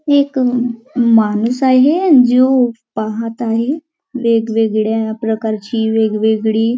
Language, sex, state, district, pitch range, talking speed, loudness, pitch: Marathi, female, Maharashtra, Nagpur, 220-255 Hz, 80 wpm, -14 LUFS, 230 Hz